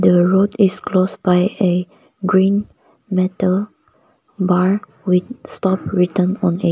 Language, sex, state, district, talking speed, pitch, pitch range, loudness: English, female, Nagaland, Kohima, 125 wpm, 185 Hz, 180-195 Hz, -17 LUFS